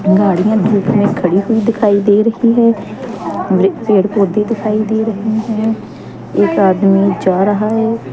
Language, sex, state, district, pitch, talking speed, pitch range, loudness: Hindi, female, Chandigarh, Chandigarh, 210 Hz, 155 wpm, 195-220 Hz, -13 LUFS